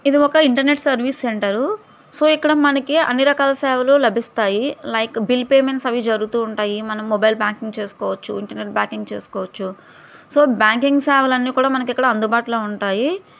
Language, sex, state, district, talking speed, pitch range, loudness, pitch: Telugu, female, Andhra Pradesh, Visakhapatnam, 150 wpm, 215-275 Hz, -18 LUFS, 245 Hz